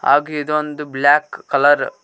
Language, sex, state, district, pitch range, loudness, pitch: Kannada, male, Karnataka, Koppal, 140-150 Hz, -17 LUFS, 145 Hz